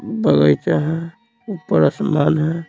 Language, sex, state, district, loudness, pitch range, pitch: Hindi, male, Bihar, Patna, -17 LUFS, 110-175 Hz, 160 Hz